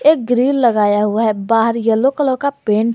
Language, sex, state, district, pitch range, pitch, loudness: Hindi, female, Jharkhand, Garhwa, 220-270 Hz, 230 Hz, -15 LUFS